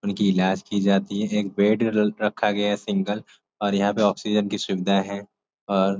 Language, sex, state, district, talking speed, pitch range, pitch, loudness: Hindi, male, Uttar Pradesh, Ghazipur, 210 wpm, 100-105 Hz, 100 Hz, -23 LUFS